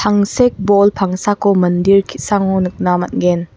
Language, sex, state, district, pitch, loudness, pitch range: Garo, female, Meghalaya, West Garo Hills, 195 Hz, -14 LUFS, 180-205 Hz